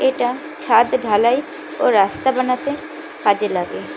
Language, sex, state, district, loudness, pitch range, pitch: Bengali, female, West Bengal, Cooch Behar, -18 LUFS, 215-265 Hz, 250 Hz